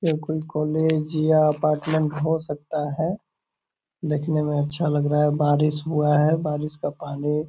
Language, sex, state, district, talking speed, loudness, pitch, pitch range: Hindi, male, Bihar, Purnia, 170 wpm, -23 LUFS, 150 Hz, 150-155 Hz